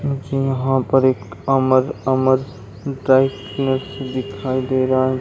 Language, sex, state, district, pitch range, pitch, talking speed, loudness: Hindi, male, Chhattisgarh, Bilaspur, 130-135 Hz, 130 Hz, 105 wpm, -19 LUFS